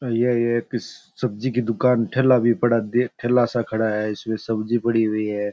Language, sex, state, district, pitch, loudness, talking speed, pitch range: Rajasthani, male, Rajasthan, Churu, 115 Hz, -21 LUFS, 205 wpm, 110-125 Hz